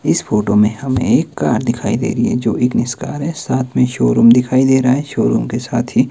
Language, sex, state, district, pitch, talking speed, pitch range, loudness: Hindi, male, Himachal Pradesh, Shimla, 125 Hz, 255 wpm, 105-130 Hz, -15 LUFS